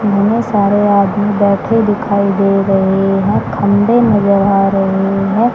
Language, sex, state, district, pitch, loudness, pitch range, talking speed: Hindi, male, Haryana, Charkhi Dadri, 200 Hz, -12 LUFS, 195-210 Hz, 140 wpm